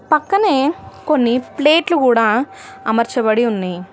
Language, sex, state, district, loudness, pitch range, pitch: Telugu, female, Telangana, Hyderabad, -16 LUFS, 225-305 Hz, 250 Hz